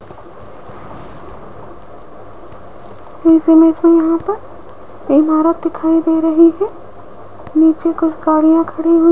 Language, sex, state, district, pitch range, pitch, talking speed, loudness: Hindi, female, Rajasthan, Jaipur, 320-335 Hz, 325 Hz, 105 wpm, -13 LUFS